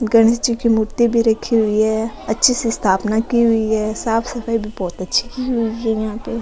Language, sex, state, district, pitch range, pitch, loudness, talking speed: Rajasthani, female, Rajasthan, Nagaur, 220-235 Hz, 225 Hz, -18 LUFS, 215 wpm